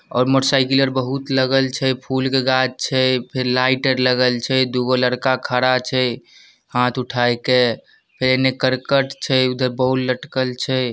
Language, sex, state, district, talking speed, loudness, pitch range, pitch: Maithili, male, Bihar, Samastipur, 160 wpm, -18 LUFS, 125-130 Hz, 130 Hz